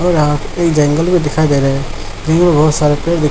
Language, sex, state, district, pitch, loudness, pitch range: Hindi, male, Bihar, Lakhisarai, 150 Hz, -13 LUFS, 145-170 Hz